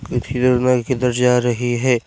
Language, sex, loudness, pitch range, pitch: Hindi, male, -17 LUFS, 120-125 Hz, 125 Hz